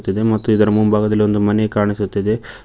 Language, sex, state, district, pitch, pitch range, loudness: Kannada, male, Karnataka, Koppal, 105 Hz, 105-110 Hz, -16 LUFS